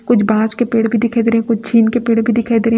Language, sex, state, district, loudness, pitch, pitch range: Hindi, female, Chhattisgarh, Raipur, -14 LUFS, 230 Hz, 225-235 Hz